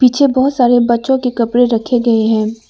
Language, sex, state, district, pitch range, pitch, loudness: Hindi, female, Arunachal Pradesh, Lower Dibang Valley, 230-255 Hz, 245 Hz, -13 LUFS